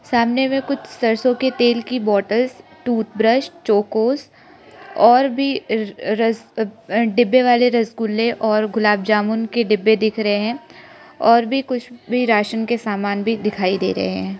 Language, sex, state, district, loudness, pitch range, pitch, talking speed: Hindi, female, Arunachal Pradesh, Lower Dibang Valley, -18 LUFS, 215-245 Hz, 225 Hz, 145 wpm